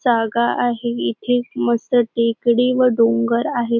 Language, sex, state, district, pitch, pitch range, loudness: Marathi, female, Maharashtra, Dhule, 235 Hz, 230-245 Hz, -18 LUFS